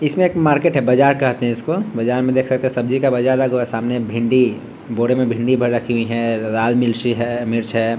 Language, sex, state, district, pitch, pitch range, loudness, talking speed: Hindi, male, Bihar, Vaishali, 125 Hz, 115-130 Hz, -17 LUFS, 250 wpm